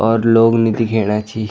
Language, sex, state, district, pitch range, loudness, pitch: Garhwali, male, Uttarakhand, Tehri Garhwal, 110-115 Hz, -15 LUFS, 110 Hz